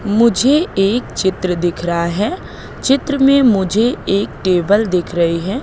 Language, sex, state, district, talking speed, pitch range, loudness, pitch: Hindi, female, Madhya Pradesh, Katni, 150 wpm, 175-240 Hz, -15 LUFS, 200 Hz